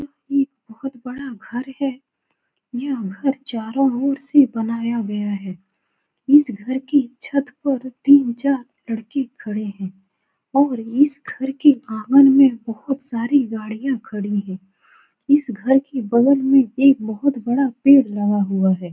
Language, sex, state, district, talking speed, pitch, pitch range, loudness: Hindi, female, Bihar, Saran, 145 wpm, 255 Hz, 220-275 Hz, -19 LUFS